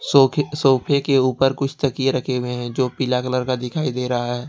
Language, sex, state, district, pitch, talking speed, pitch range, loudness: Hindi, male, Jharkhand, Ranchi, 130 Hz, 215 wpm, 125-135 Hz, -20 LUFS